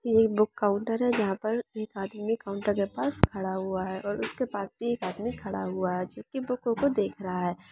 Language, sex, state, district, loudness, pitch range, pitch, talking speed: Hindi, female, Andhra Pradesh, Chittoor, -29 LUFS, 195-235 Hz, 210 Hz, 225 wpm